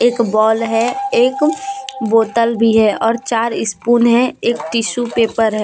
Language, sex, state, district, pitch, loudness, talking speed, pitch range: Hindi, female, Jharkhand, Deoghar, 235 Hz, -15 LUFS, 160 wpm, 225-245 Hz